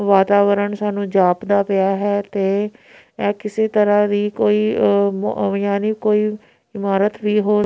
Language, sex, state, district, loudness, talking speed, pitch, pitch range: Punjabi, female, Punjab, Pathankot, -18 LUFS, 135 wpm, 205 Hz, 200-210 Hz